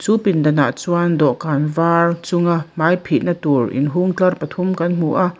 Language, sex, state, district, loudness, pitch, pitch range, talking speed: Mizo, female, Mizoram, Aizawl, -17 LUFS, 170 Hz, 150-180 Hz, 155 wpm